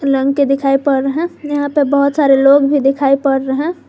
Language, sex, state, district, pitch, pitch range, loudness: Hindi, female, Jharkhand, Garhwa, 280 Hz, 275-290 Hz, -13 LUFS